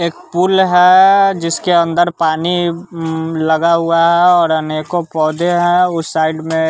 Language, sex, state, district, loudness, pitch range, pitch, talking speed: Hindi, male, Bihar, West Champaran, -13 LUFS, 160-175 Hz, 170 Hz, 150 wpm